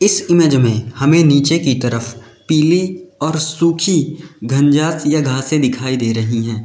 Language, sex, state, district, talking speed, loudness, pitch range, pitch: Hindi, male, Uttar Pradesh, Lalitpur, 155 wpm, -15 LUFS, 125-160 Hz, 150 Hz